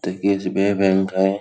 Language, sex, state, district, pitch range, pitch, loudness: Marathi, male, Karnataka, Belgaum, 95-100 Hz, 95 Hz, -19 LUFS